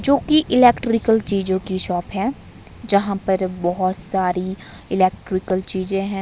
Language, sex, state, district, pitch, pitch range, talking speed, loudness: Hindi, female, Himachal Pradesh, Shimla, 190 Hz, 185-220 Hz, 125 wpm, -19 LUFS